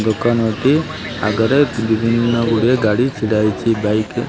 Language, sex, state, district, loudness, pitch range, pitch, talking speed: Odia, male, Odisha, Malkangiri, -16 LUFS, 110-120 Hz, 115 Hz, 125 wpm